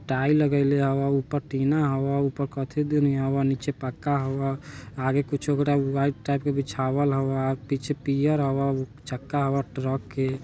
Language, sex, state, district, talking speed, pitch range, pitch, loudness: Bajjika, male, Bihar, Vaishali, 160 wpm, 135-140 Hz, 140 Hz, -25 LUFS